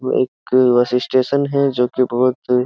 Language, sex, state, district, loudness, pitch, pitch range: Hindi, male, Uttar Pradesh, Jyotiba Phule Nagar, -17 LUFS, 125 Hz, 125-130 Hz